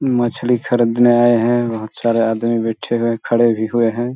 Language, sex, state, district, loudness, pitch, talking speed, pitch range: Hindi, male, Chhattisgarh, Balrampur, -16 LUFS, 120 Hz, 200 wpm, 115-120 Hz